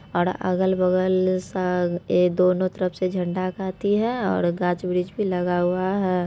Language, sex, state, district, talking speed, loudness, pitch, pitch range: Maithili, female, Bihar, Supaul, 170 wpm, -23 LUFS, 185 Hz, 180-185 Hz